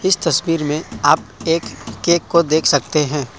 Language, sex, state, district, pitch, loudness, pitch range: Hindi, male, Assam, Kamrup Metropolitan, 160 Hz, -17 LUFS, 150-170 Hz